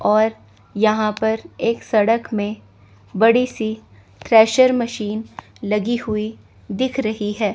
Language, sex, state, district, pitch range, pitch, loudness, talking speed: Hindi, female, Chandigarh, Chandigarh, 210-230 Hz, 220 Hz, -19 LUFS, 120 wpm